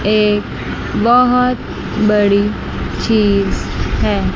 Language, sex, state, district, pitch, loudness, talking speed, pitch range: Hindi, female, Chandigarh, Chandigarh, 210 Hz, -15 LUFS, 70 wpm, 205-235 Hz